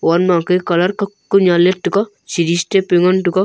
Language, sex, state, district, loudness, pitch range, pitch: Wancho, male, Arunachal Pradesh, Longding, -15 LUFS, 175-195 Hz, 180 Hz